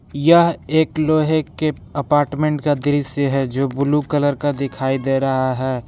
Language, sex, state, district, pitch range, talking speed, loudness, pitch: Hindi, male, Jharkhand, Garhwa, 135-150 Hz, 165 wpm, -18 LUFS, 145 Hz